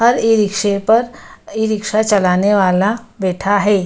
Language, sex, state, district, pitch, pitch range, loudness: Hindi, female, Bihar, Samastipur, 205 Hz, 195-220 Hz, -15 LUFS